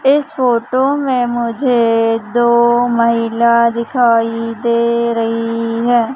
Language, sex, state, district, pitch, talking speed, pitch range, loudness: Hindi, female, Madhya Pradesh, Umaria, 235 Hz, 95 wpm, 230-245 Hz, -14 LUFS